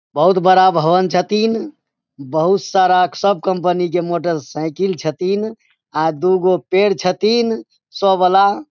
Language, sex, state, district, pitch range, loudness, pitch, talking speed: Maithili, male, Bihar, Supaul, 175-195 Hz, -16 LUFS, 185 Hz, 130 wpm